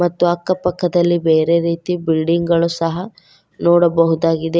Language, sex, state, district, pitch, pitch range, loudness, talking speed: Kannada, female, Karnataka, Koppal, 170 Hz, 165-175 Hz, -16 LUFS, 115 wpm